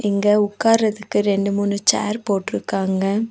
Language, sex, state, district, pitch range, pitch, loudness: Tamil, female, Tamil Nadu, Nilgiris, 200-210 Hz, 205 Hz, -19 LUFS